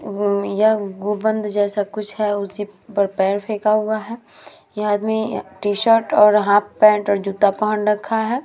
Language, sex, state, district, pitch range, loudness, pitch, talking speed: Hindi, female, Uttar Pradesh, Hamirpur, 205-220 Hz, -18 LUFS, 210 Hz, 155 wpm